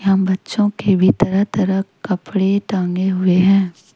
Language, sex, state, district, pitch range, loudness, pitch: Hindi, female, Jharkhand, Deoghar, 185-195 Hz, -17 LUFS, 190 Hz